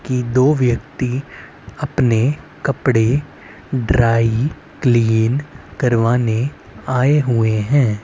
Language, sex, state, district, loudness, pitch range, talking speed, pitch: Hindi, male, Haryana, Rohtak, -17 LUFS, 115-140 Hz, 80 wpm, 125 Hz